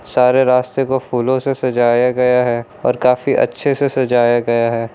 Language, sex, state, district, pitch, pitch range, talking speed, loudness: Hindi, male, Bihar, Kishanganj, 125 Hz, 120-130 Hz, 180 wpm, -15 LUFS